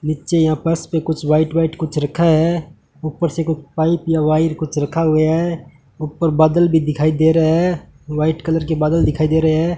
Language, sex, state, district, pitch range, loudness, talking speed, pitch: Hindi, male, Rajasthan, Bikaner, 155-165 Hz, -17 LUFS, 210 wpm, 160 Hz